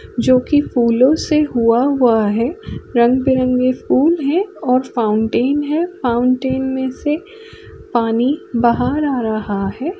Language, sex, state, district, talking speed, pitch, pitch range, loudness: Bhojpuri, female, Uttar Pradesh, Deoria, 120 wpm, 255 Hz, 235-295 Hz, -16 LUFS